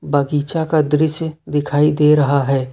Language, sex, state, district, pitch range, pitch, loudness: Hindi, male, Jharkhand, Ranchi, 145-155 Hz, 150 Hz, -16 LUFS